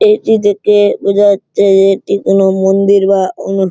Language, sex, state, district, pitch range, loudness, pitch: Bengali, male, West Bengal, Malda, 195-205 Hz, -10 LUFS, 195 Hz